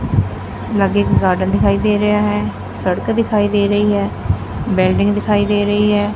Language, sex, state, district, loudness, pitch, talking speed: Punjabi, female, Punjab, Fazilka, -16 LUFS, 205 Hz, 165 wpm